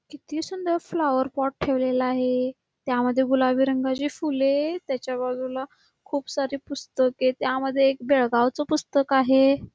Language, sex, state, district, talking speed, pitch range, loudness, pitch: Marathi, female, Karnataka, Belgaum, 130 wpm, 255-285 Hz, -24 LUFS, 270 Hz